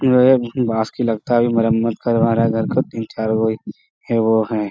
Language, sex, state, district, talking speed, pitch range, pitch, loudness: Hindi, male, Bihar, Jamui, 205 wpm, 110-120 Hz, 115 Hz, -18 LUFS